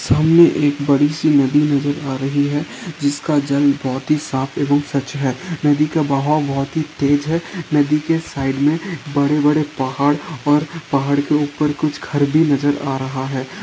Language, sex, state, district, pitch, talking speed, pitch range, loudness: Hindi, male, Uttarakhand, Uttarkashi, 145 Hz, 185 wpm, 140-150 Hz, -18 LUFS